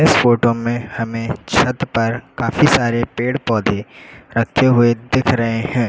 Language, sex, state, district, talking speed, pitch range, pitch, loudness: Hindi, male, Uttar Pradesh, Lucknow, 155 wpm, 115-130 Hz, 120 Hz, -17 LUFS